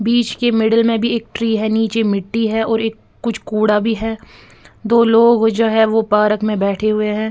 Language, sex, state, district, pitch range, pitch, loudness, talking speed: Hindi, female, Bihar, Patna, 215-230 Hz, 225 Hz, -16 LUFS, 220 wpm